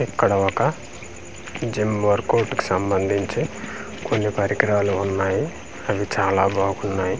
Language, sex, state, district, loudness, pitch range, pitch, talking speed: Telugu, male, Andhra Pradesh, Manyam, -22 LUFS, 95-105 Hz, 100 Hz, 110 wpm